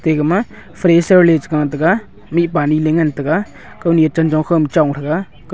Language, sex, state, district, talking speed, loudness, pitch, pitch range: Wancho, male, Arunachal Pradesh, Longding, 205 wpm, -15 LUFS, 160 Hz, 150-170 Hz